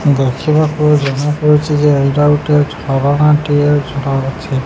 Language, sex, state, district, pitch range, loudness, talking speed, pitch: Odia, male, Odisha, Sambalpur, 140-150 Hz, -13 LUFS, 105 wpm, 145 Hz